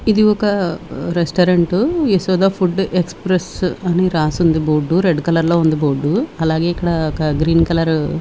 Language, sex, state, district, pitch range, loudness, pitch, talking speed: Telugu, female, Andhra Pradesh, Sri Satya Sai, 160-185 Hz, -16 LUFS, 170 Hz, 155 wpm